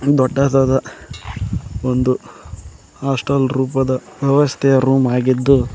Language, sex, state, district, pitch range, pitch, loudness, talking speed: Kannada, male, Karnataka, Koppal, 125-135 Hz, 130 Hz, -17 LUFS, 75 wpm